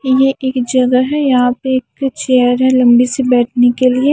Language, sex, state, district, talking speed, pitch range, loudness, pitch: Hindi, female, Himachal Pradesh, Shimla, 205 wpm, 250-260 Hz, -12 LUFS, 255 Hz